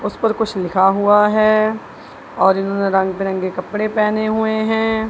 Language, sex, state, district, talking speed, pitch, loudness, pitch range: Hindi, female, Punjab, Kapurthala, 165 wpm, 210 Hz, -17 LUFS, 190-220 Hz